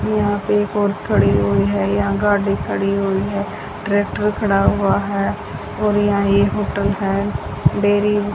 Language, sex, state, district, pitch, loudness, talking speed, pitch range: Hindi, female, Haryana, Rohtak, 200 Hz, -18 LUFS, 165 wpm, 130-205 Hz